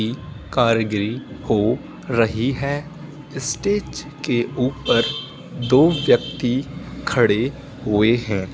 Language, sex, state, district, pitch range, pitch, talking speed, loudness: Hindi, male, Uttar Pradesh, Hamirpur, 115-145 Hz, 130 Hz, 90 wpm, -20 LUFS